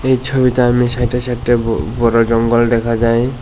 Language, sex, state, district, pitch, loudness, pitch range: Bengali, male, Tripura, West Tripura, 120 Hz, -14 LUFS, 115-125 Hz